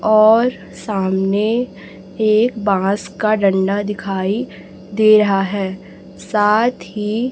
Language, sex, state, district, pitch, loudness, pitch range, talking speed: Hindi, female, Chhattisgarh, Raipur, 210 Hz, -17 LUFS, 195-215 Hz, 100 wpm